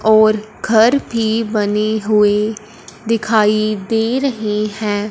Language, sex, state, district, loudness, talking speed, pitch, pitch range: Hindi, female, Punjab, Fazilka, -16 LUFS, 105 wpm, 215 Hz, 210-225 Hz